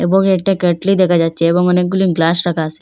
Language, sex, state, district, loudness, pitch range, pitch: Bengali, female, Assam, Hailakandi, -14 LUFS, 165-190 Hz, 180 Hz